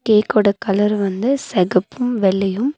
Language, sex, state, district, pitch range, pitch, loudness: Tamil, female, Tamil Nadu, Nilgiris, 195-235 Hz, 210 Hz, -17 LUFS